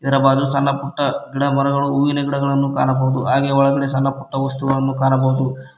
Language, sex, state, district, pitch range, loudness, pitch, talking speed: Kannada, male, Karnataka, Koppal, 135-140 Hz, -18 LUFS, 135 Hz, 155 wpm